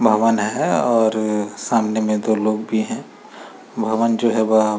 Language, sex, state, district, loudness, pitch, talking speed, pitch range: Hindi, male, Uttar Pradesh, Muzaffarnagar, -19 LUFS, 110 Hz, 175 wpm, 110-115 Hz